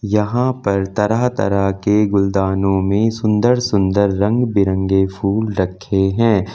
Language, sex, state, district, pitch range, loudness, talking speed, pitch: Hindi, male, Uttar Pradesh, Lucknow, 95-110 Hz, -17 LUFS, 130 wpm, 100 Hz